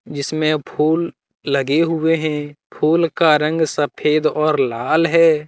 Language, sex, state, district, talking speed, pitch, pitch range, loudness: Hindi, male, Jharkhand, Deoghar, 130 wpm, 155 Hz, 150-160 Hz, -17 LUFS